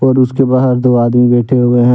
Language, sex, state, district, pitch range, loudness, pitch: Hindi, male, Jharkhand, Deoghar, 120-130 Hz, -11 LUFS, 125 Hz